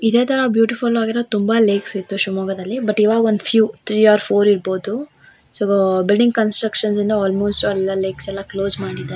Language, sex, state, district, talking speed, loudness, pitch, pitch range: Kannada, female, Karnataka, Shimoga, 170 wpm, -17 LUFS, 210 Hz, 195-225 Hz